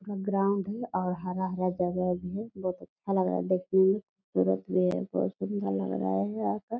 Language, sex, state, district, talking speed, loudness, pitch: Hindi, female, Bihar, Purnia, 210 wpm, -30 LUFS, 185 Hz